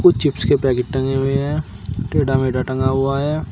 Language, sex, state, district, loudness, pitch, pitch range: Hindi, male, Uttar Pradesh, Saharanpur, -19 LUFS, 135 Hz, 130-145 Hz